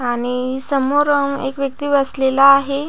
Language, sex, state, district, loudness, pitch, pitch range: Marathi, female, Maharashtra, Pune, -16 LUFS, 275 Hz, 265-280 Hz